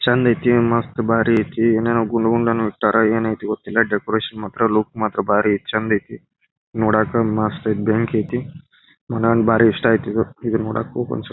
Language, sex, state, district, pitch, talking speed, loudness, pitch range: Kannada, male, Karnataka, Bijapur, 115 Hz, 160 wpm, -19 LUFS, 110-115 Hz